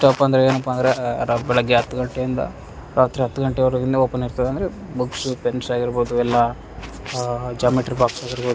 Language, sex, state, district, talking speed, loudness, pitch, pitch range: Kannada, male, Karnataka, Raichur, 160 wpm, -21 LUFS, 125 Hz, 120-130 Hz